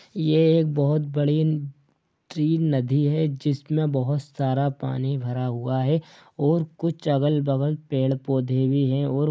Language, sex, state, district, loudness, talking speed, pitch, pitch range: Hindi, male, Bihar, Darbhanga, -23 LUFS, 140 wpm, 145 Hz, 135-155 Hz